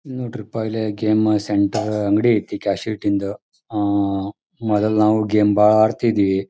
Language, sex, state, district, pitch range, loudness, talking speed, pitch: Kannada, male, Karnataka, Dharwad, 100-110 Hz, -19 LUFS, 140 wpm, 105 Hz